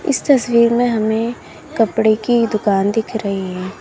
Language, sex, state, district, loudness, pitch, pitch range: Hindi, female, Uttar Pradesh, Lalitpur, -16 LUFS, 225 Hz, 215-240 Hz